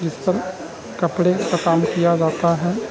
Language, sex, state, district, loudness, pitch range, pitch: Hindi, male, Bihar, Darbhanga, -19 LUFS, 165-180 Hz, 175 Hz